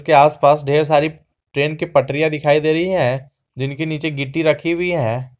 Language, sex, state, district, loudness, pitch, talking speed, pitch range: Hindi, male, Jharkhand, Garhwa, -17 LUFS, 150 Hz, 190 wpm, 135-160 Hz